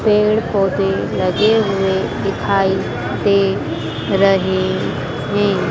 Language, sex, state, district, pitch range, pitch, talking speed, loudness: Hindi, female, Madhya Pradesh, Dhar, 190-200 Hz, 195 Hz, 85 wpm, -17 LUFS